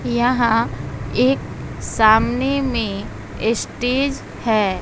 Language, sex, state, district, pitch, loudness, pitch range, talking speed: Hindi, female, Bihar, West Champaran, 235 Hz, -19 LUFS, 220-255 Hz, 75 wpm